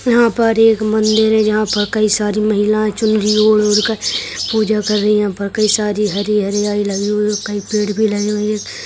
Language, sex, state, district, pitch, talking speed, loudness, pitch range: Hindi, male, Uttarakhand, Tehri Garhwal, 210 Hz, 215 wpm, -15 LUFS, 210-215 Hz